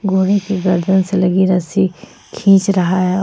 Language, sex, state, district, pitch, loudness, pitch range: Hindi, female, Jharkhand, Ranchi, 190 Hz, -15 LUFS, 185-195 Hz